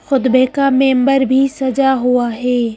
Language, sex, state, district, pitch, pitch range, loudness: Hindi, female, Madhya Pradesh, Bhopal, 260 Hz, 250-270 Hz, -14 LUFS